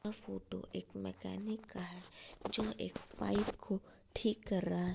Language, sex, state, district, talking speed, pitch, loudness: Hindi, female, Bihar, Darbhanga, 180 wpm, 180 Hz, -41 LUFS